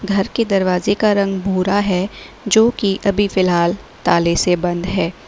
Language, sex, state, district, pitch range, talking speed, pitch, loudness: Hindi, female, Uttar Pradesh, Lalitpur, 180-205 Hz, 170 wpm, 195 Hz, -17 LUFS